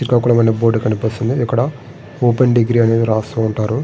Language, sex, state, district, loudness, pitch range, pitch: Telugu, male, Andhra Pradesh, Srikakulam, -15 LUFS, 110-125 Hz, 115 Hz